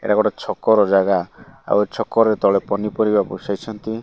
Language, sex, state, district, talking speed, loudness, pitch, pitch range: Odia, male, Odisha, Malkangiri, 150 wpm, -19 LUFS, 105 Hz, 100-110 Hz